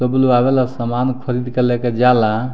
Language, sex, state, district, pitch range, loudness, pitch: Bhojpuri, male, Bihar, Muzaffarpur, 120-125 Hz, -16 LUFS, 125 Hz